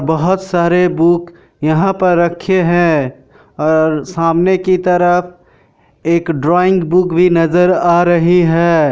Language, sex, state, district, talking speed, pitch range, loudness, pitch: Hindi, male, Bihar, Kishanganj, 130 wpm, 165-180 Hz, -13 LUFS, 175 Hz